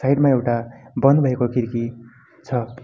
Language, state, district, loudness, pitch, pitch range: Nepali, West Bengal, Darjeeling, -20 LUFS, 125 Hz, 120-130 Hz